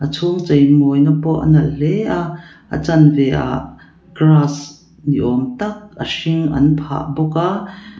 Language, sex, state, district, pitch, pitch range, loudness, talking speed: Mizo, female, Mizoram, Aizawl, 155 Hz, 145-170 Hz, -16 LUFS, 165 wpm